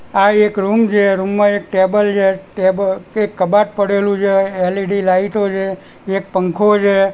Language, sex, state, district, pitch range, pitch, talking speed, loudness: Gujarati, male, Gujarat, Gandhinagar, 190-205 Hz, 195 Hz, 170 wpm, -15 LUFS